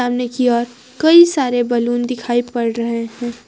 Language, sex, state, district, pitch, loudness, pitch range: Hindi, female, Jharkhand, Garhwa, 240 Hz, -16 LUFS, 235-250 Hz